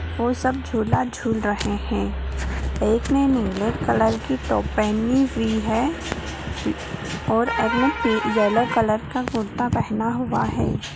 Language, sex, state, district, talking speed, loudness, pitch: Hindi, female, Bihar, Jahanabad, 135 wpm, -22 LUFS, 220 Hz